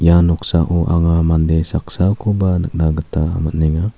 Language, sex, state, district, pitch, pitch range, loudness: Garo, male, Meghalaya, South Garo Hills, 85 Hz, 80-90 Hz, -16 LUFS